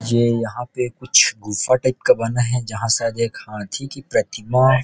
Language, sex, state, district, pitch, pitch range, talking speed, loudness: Hindi, male, Chhattisgarh, Rajnandgaon, 120 Hz, 115-130 Hz, 200 wpm, -19 LUFS